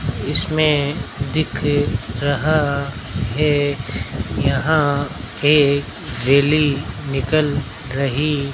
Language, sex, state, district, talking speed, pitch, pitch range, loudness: Hindi, male, Rajasthan, Bikaner, 70 wpm, 140 Hz, 135-150 Hz, -19 LUFS